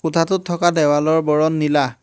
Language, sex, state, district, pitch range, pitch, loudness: Assamese, male, Assam, Hailakandi, 150-165 Hz, 160 Hz, -17 LUFS